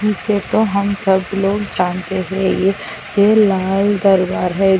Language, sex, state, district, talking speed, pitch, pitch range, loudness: Hindi, female, Chhattisgarh, Raigarh, 150 wpm, 195 Hz, 190-200 Hz, -16 LUFS